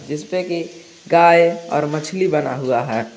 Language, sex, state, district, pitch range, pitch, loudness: Hindi, male, Jharkhand, Garhwa, 145-170 Hz, 165 Hz, -17 LUFS